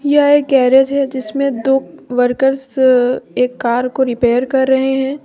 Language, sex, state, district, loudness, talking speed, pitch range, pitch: Hindi, female, Jharkhand, Deoghar, -14 LUFS, 160 wpm, 250-275 Hz, 265 Hz